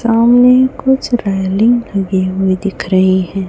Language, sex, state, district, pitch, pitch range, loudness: Hindi, female, Chhattisgarh, Raipur, 200 Hz, 190-240 Hz, -12 LUFS